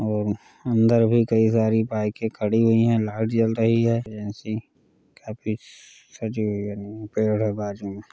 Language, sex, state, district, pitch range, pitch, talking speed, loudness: Hindi, male, Uttar Pradesh, Varanasi, 105-115 Hz, 110 Hz, 170 wpm, -23 LUFS